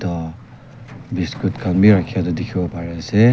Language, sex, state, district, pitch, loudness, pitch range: Nagamese, male, Nagaland, Kohima, 95 Hz, -19 LUFS, 90-120 Hz